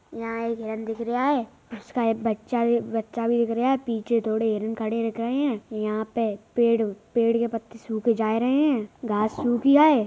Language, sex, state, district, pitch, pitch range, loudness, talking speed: Hindi, female, Uttar Pradesh, Budaun, 230 Hz, 220-240 Hz, -25 LUFS, 215 wpm